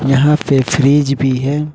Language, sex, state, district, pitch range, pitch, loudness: Hindi, male, Jharkhand, Ranchi, 135-150 Hz, 140 Hz, -13 LUFS